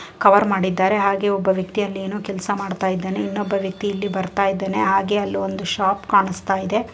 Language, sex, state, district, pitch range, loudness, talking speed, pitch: Kannada, female, Karnataka, Shimoga, 190-205 Hz, -20 LUFS, 155 wpm, 195 Hz